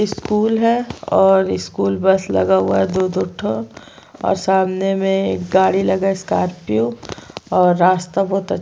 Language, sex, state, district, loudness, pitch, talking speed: Hindi, female, Chhattisgarh, Sukma, -17 LUFS, 185 Hz, 160 wpm